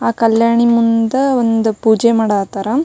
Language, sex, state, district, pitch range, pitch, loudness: Kannada, female, Karnataka, Belgaum, 220-235 Hz, 230 Hz, -13 LUFS